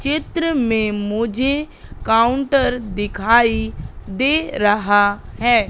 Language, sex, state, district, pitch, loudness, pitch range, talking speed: Hindi, female, Madhya Pradesh, Katni, 230 Hz, -18 LUFS, 210-275 Hz, 85 wpm